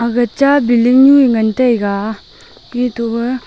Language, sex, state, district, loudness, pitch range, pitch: Wancho, female, Arunachal Pradesh, Longding, -12 LUFS, 230-255 Hz, 240 Hz